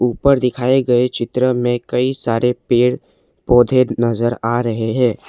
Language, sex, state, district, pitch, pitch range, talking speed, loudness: Hindi, male, Assam, Kamrup Metropolitan, 120 Hz, 120-125 Hz, 150 wpm, -16 LUFS